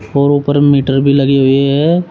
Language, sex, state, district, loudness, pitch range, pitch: Hindi, male, Uttar Pradesh, Shamli, -11 LUFS, 140-145 Hz, 140 Hz